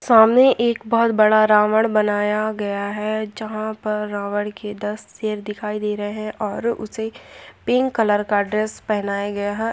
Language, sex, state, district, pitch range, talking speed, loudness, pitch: Hindi, female, Chhattisgarh, Sukma, 210-220 Hz, 165 wpm, -20 LUFS, 215 Hz